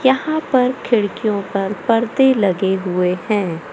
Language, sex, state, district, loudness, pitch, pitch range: Hindi, male, Madhya Pradesh, Katni, -17 LUFS, 210 Hz, 190-255 Hz